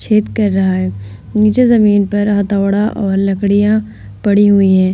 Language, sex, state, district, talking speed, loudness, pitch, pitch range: Hindi, female, Uttar Pradesh, Hamirpur, 160 wpm, -13 LUFS, 200 Hz, 190-210 Hz